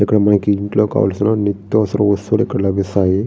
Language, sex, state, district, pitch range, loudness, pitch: Telugu, male, Andhra Pradesh, Srikakulam, 100-105 Hz, -16 LUFS, 105 Hz